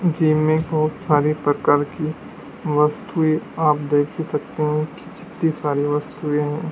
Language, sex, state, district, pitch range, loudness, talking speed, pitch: Hindi, male, Madhya Pradesh, Dhar, 150-160 Hz, -21 LUFS, 145 wpm, 155 Hz